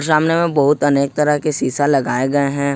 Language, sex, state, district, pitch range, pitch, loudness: Hindi, male, Jharkhand, Ranchi, 140-150 Hz, 145 Hz, -16 LUFS